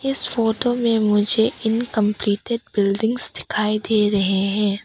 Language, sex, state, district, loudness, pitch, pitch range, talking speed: Hindi, female, Arunachal Pradesh, Papum Pare, -20 LUFS, 215 Hz, 205-230 Hz, 125 wpm